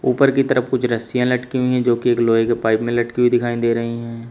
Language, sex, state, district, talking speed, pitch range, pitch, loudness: Hindi, male, Uttar Pradesh, Shamli, 280 wpm, 115-125 Hz, 120 Hz, -18 LUFS